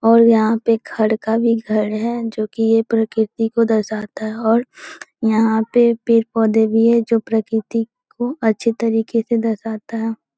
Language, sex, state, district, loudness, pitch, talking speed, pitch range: Hindi, female, Bihar, Begusarai, -17 LUFS, 225 Hz, 155 wpm, 220-230 Hz